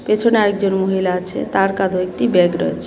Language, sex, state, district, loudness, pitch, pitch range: Bengali, female, Tripura, West Tripura, -17 LUFS, 190 Hz, 180-200 Hz